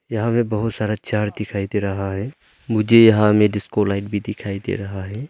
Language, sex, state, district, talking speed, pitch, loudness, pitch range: Hindi, male, Arunachal Pradesh, Longding, 215 wpm, 105 Hz, -19 LUFS, 100-110 Hz